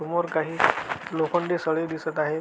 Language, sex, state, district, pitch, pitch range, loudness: Marathi, male, Maharashtra, Aurangabad, 160 Hz, 160-170 Hz, -26 LUFS